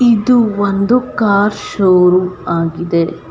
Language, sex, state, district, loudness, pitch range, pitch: Kannada, female, Karnataka, Belgaum, -13 LUFS, 180-215 Hz, 200 Hz